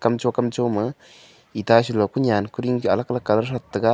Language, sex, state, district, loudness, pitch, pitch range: Wancho, male, Arunachal Pradesh, Longding, -22 LUFS, 120 Hz, 105-125 Hz